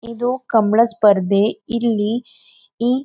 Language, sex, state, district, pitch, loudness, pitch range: Kannada, female, Karnataka, Dakshina Kannada, 230 Hz, -18 LUFS, 215-245 Hz